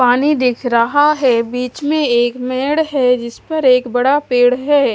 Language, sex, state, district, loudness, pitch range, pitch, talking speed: Hindi, female, Haryana, Charkhi Dadri, -14 LUFS, 245-290 Hz, 255 Hz, 180 wpm